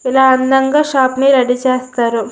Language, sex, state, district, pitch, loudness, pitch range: Telugu, female, Andhra Pradesh, Srikakulam, 260 Hz, -13 LUFS, 255-265 Hz